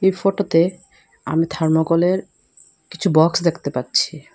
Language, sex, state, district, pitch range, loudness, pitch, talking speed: Bengali, female, Assam, Hailakandi, 160-185 Hz, -19 LUFS, 170 Hz, 110 wpm